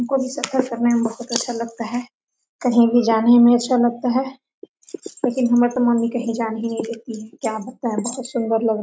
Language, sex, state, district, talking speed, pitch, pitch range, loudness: Hindi, female, Jharkhand, Sahebganj, 215 wpm, 240 Hz, 230-255 Hz, -20 LUFS